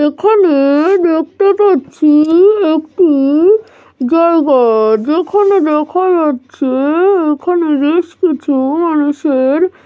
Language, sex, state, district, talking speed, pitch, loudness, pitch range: Bengali, female, West Bengal, Malda, 75 wpm, 320 Hz, -11 LUFS, 290-365 Hz